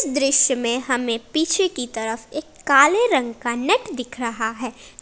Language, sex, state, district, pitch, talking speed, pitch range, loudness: Hindi, female, Jharkhand, Palamu, 255 Hz, 165 wpm, 235-300 Hz, -20 LUFS